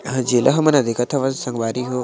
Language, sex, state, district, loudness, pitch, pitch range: Chhattisgarhi, male, Chhattisgarh, Sarguja, -19 LUFS, 125 Hz, 120-135 Hz